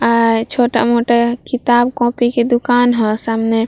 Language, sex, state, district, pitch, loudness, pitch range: Bhojpuri, female, Bihar, Gopalganj, 240 Hz, -14 LUFS, 230-240 Hz